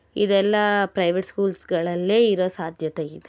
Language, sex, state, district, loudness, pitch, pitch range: Kannada, female, Karnataka, Bellary, -22 LUFS, 190 Hz, 175-205 Hz